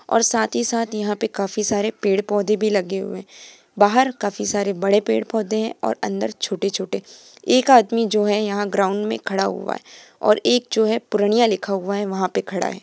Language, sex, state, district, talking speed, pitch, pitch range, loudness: Hindi, female, Bihar, Purnia, 205 wpm, 210 Hz, 200-225 Hz, -20 LUFS